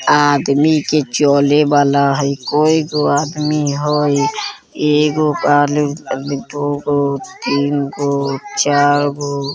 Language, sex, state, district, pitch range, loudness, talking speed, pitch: Bajjika, male, Bihar, Vaishali, 140-150 Hz, -15 LUFS, 90 wpm, 145 Hz